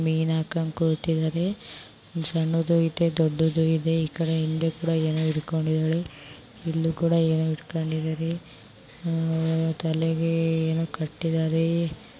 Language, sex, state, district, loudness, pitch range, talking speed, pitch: Kannada, female, Karnataka, Shimoga, -25 LUFS, 160-165 Hz, 100 wpm, 160 Hz